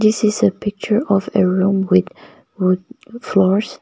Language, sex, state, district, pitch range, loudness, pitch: English, female, Nagaland, Kohima, 190-215 Hz, -17 LUFS, 200 Hz